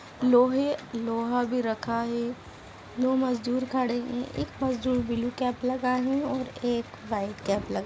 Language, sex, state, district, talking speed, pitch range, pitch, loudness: Hindi, female, Bihar, Vaishali, 155 wpm, 235-255 Hz, 245 Hz, -28 LUFS